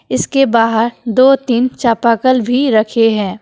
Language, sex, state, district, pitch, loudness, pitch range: Hindi, female, Jharkhand, Deoghar, 235 Hz, -13 LUFS, 225-255 Hz